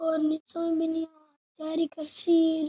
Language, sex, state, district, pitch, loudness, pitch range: Rajasthani, male, Rajasthan, Nagaur, 320 Hz, -26 LUFS, 310-325 Hz